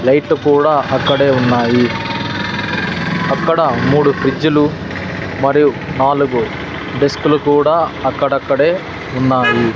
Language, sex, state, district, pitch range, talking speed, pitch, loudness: Telugu, male, Andhra Pradesh, Sri Satya Sai, 130-150 Hz, 80 wpm, 140 Hz, -14 LUFS